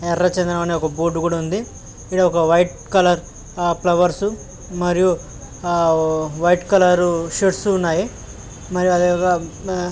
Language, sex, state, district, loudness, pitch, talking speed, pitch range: Telugu, male, Andhra Pradesh, Krishna, -18 LUFS, 175 Hz, 125 wpm, 165-180 Hz